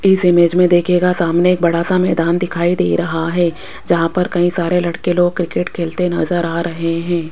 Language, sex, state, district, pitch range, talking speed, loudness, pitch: Hindi, female, Rajasthan, Jaipur, 170-180 Hz, 205 wpm, -15 LUFS, 175 Hz